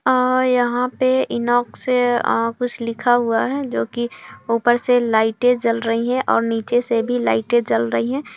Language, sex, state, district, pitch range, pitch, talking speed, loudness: Hindi, female, Bihar, Kishanganj, 230-250 Hz, 240 Hz, 180 wpm, -19 LUFS